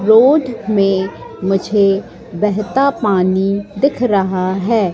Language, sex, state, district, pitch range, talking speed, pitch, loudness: Hindi, female, Madhya Pradesh, Katni, 190-230 Hz, 95 wpm, 200 Hz, -15 LUFS